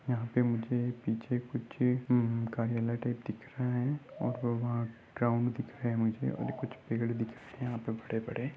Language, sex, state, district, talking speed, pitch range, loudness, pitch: Hindi, male, Chhattisgarh, Raigarh, 190 wpm, 115-125 Hz, -34 LUFS, 120 Hz